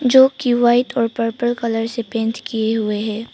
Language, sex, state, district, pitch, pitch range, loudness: Hindi, female, Arunachal Pradesh, Papum Pare, 230 Hz, 225-240 Hz, -18 LUFS